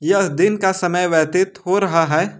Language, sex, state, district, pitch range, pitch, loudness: Hindi, male, Jharkhand, Ranchi, 165-195 Hz, 185 Hz, -17 LUFS